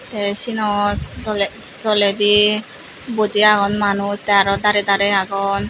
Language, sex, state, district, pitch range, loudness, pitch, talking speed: Chakma, female, Tripura, Unakoti, 200-210 Hz, -17 LUFS, 205 Hz, 125 wpm